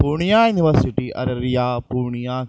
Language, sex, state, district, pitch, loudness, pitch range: Maithili, male, Bihar, Purnia, 130 Hz, -19 LUFS, 125-150 Hz